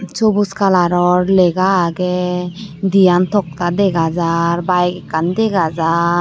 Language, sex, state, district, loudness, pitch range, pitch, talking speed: Chakma, female, Tripura, Unakoti, -15 LUFS, 175-195 Hz, 180 Hz, 115 wpm